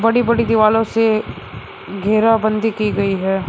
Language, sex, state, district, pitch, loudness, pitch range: Hindi, male, Uttar Pradesh, Shamli, 215 Hz, -16 LUFS, 200-225 Hz